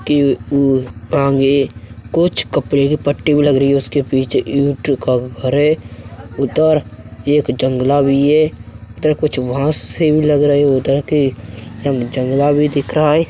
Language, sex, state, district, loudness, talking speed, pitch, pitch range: Hindi, male, Uttar Pradesh, Hamirpur, -15 LUFS, 165 wpm, 140 Hz, 125-145 Hz